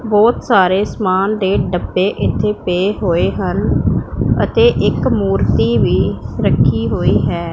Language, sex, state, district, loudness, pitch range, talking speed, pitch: Punjabi, female, Punjab, Pathankot, -15 LUFS, 170-210 Hz, 125 wpm, 190 Hz